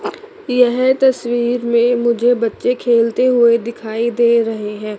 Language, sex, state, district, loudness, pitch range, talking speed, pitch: Hindi, female, Chandigarh, Chandigarh, -15 LUFS, 230-250 Hz, 130 wpm, 240 Hz